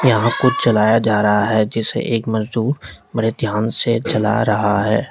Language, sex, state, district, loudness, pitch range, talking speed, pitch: Hindi, male, Uttar Pradesh, Lalitpur, -17 LUFS, 105-115 Hz, 175 wpm, 110 Hz